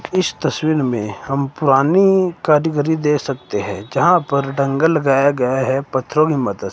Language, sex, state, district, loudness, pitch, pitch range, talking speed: Hindi, male, Himachal Pradesh, Shimla, -17 LUFS, 140 Hz, 135-155 Hz, 100 wpm